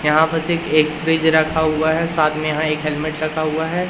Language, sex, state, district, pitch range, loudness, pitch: Hindi, male, Madhya Pradesh, Katni, 155-160 Hz, -18 LUFS, 155 Hz